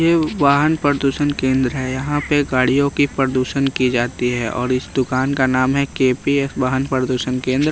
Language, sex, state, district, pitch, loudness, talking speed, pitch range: Hindi, male, Bihar, West Champaran, 130 Hz, -18 LUFS, 180 wpm, 130-140 Hz